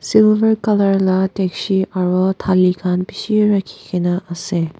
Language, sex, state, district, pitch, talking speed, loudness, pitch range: Nagamese, female, Nagaland, Dimapur, 190 Hz, 125 wpm, -17 LUFS, 180-200 Hz